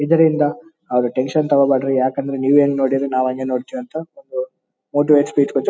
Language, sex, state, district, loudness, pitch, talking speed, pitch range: Kannada, male, Karnataka, Bellary, -18 LUFS, 140 Hz, 145 wpm, 135-160 Hz